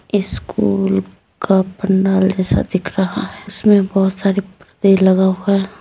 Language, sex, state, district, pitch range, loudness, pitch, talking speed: Hindi, female, Jharkhand, Deoghar, 185-195 Hz, -16 LUFS, 190 Hz, 145 wpm